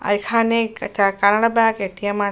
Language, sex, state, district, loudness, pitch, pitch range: Bengali, female, West Bengal, Jalpaiguri, -18 LUFS, 205 Hz, 200-230 Hz